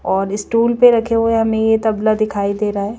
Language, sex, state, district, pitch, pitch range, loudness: Hindi, female, Madhya Pradesh, Bhopal, 220 Hz, 205-230 Hz, -15 LUFS